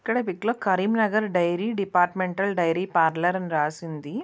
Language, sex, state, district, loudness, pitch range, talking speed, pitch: Telugu, female, Andhra Pradesh, Visakhapatnam, -24 LUFS, 170-205 Hz, 155 wpm, 185 Hz